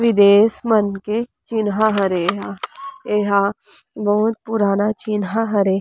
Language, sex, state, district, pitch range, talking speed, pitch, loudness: Chhattisgarhi, female, Chhattisgarh, Rajnandgaon, 200-225 Hz, 145 wpm, 210 Hz, -18 LUFS